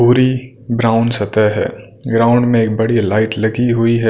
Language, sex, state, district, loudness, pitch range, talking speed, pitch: Hindi, male, Punjab, Kapurthala, -15 LUFS, 110-120 Hz, 175 wpm, 115 Hz